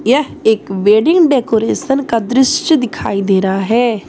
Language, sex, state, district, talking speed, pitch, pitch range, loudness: Hindi, female, Jharkhand, Deoghar, 145 wpm, 235 Hz, 210-270 Hz, -13 LUFS